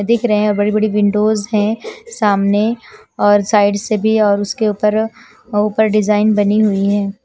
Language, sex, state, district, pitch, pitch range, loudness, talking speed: Hindi, female, Himachal Pradesh, Shimla, 210 Hz, 205-220 Hz, -15 LUFS, 165 wpm